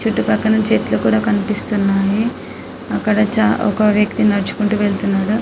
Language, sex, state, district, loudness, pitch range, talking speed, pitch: Telugu, female, Telangana, Karimnagar, -16 LUFS, 200-215 Hz, 120 wpm, 210 Hz